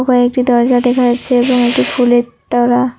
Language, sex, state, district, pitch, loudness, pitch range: Bengali, female, West Bengal, Cooch Behar, 245 Hz, -12 LUFS, 240-250 Hz